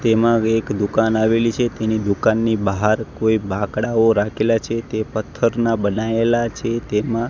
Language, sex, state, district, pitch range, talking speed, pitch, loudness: Gujarati, male, Gujarat, Gandhinagar, 105-115 Hz, 140 wpm, 110 Hz, -19 LUFS